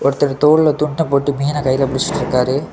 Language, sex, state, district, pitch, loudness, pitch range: Tamil, male, Tamil Nadu, Kanyakumari, 145 Hz, -16 LUFS, 135-150 Hz